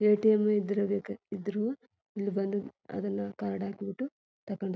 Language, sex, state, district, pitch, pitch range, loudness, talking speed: Kannada, female, Karnataka, Chamarajanagar, 200 Hz, 195-210 Hz, -32 LUFS, 125 wpm